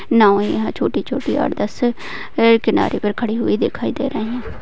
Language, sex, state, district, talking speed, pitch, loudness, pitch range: Hindi, female, Maharashtra, Pune, 170 wpm, 230 Hz, -18 LUFS, 215-240 Hz